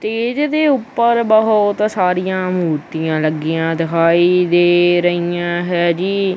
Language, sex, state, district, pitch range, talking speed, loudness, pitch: Punjabi, male, Punjab, Kapurthala, 170-215 Hz, 115 wpm, -15 LUFS, 180 Hz